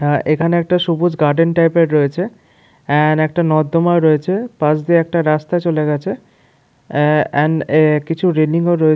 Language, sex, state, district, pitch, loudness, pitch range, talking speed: Bengali, male, West Bengal, Paschim Medinipur, 160 Hz, -15 LUFS, 155-170 Hz, 160 wpm